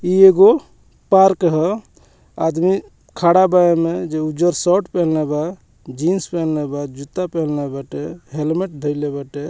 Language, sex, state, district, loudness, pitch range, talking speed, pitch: Bhojpuri, male, Bihar, Muzaffarpur, -17 LUFS, 150-180 Hz, 140 wpm, 165 Hz